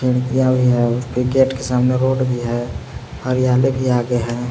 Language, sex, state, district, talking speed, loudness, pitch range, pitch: Hindi, male, Jharkhand, Palamu, 170 wpm, -18 LUFS, 120-130 Hz, 125 Hz